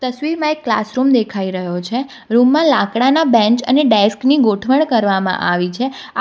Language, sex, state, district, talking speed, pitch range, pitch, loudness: Gujarati, female, Gujarat, Valsad, 175 wpm, 210-270 Hz, 245 Hz, -15 LUFS